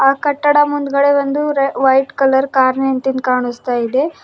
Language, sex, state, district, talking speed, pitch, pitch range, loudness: Kannada, female, Karnataka, Bidar, 140 wpm, 270 Hz, 265-285 Hz, -15 LUFS